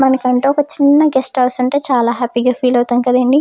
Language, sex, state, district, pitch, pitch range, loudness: Telugu, female, Andhra Pradesh, Chittoor, 255 Hz, 250-275 Hz, -14 LUFS